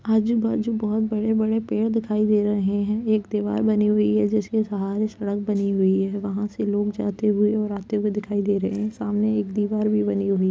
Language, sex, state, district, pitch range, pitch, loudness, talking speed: Hindi, female, Uttar Pradesh, Jalaun, 200-215 Hz, 210 Hz, -23 LUFS, 215 wpm